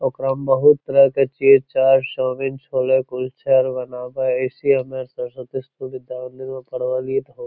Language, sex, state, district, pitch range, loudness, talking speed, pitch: Magahi, male, Bihar, Lakhisarai, 130-135 Hz, -19 LUFS, 105 wpm, 130 Hz